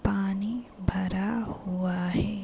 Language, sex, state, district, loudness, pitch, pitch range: Hindi, male, Rajasthan, Nagaur, -30 LUFS, 195 Hz, 185-210 Hz